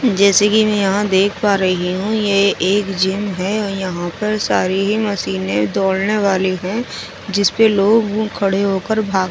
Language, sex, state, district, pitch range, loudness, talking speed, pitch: Hindi, female, Odisha, Sambalpur, 190-210 Hz, -16 LUFS, 200 wpm, 200 Hz